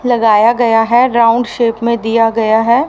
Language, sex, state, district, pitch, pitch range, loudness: Hindi, female, Haryana, Rohtak, 230 Hz, 225-240 Hz, -11 LUFS